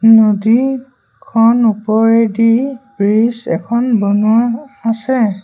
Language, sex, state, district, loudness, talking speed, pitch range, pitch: Assamese, male, Assam, Sonitpur, -13 LUFS, 75 wpm, 215-240 Hz, 225 Hz